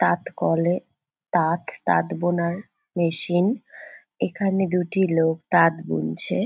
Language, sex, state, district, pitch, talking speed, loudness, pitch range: Bengali, female, West Bengal, Jalpaiguri, 175 Hz, 100 wpm, -23 LUFS, 165-190 Hz